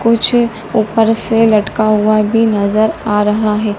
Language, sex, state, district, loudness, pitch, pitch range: Hindi, male, Madhya Pradesh, Dhar, -13 LUFS, 220 Hz, 210-225 Hz